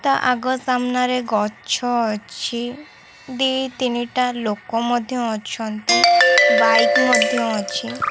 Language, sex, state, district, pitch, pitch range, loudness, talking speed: Odia, female, Odisha, Khordha, 245 Hz, 225-255 Hz, -18 LUFS, 105 wpm